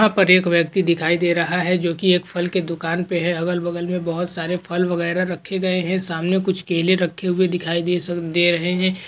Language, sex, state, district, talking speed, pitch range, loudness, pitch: Hindi, male, Maharashtra, Dhule, 240 wpm, 170-185 Hz, -20 LUFS, 175 Hz